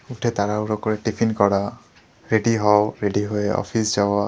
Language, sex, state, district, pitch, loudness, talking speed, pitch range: Bengali, male, West Bengal, Kolkata, 105 Hz, -21 LUFS, 155 wpm, 100-110 Hz